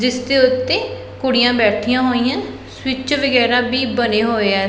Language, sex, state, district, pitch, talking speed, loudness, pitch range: Punjabi, female, Punjab, Pathankot, 250 Hz, 140 wpm, -16 LUFS, 235-255 Hz